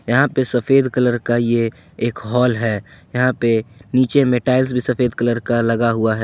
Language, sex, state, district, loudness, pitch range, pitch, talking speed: Hindi, male, Jharkhand, Ranchi, -18 LUFS, 115-125 Hz, 120 Hz, 200 wpm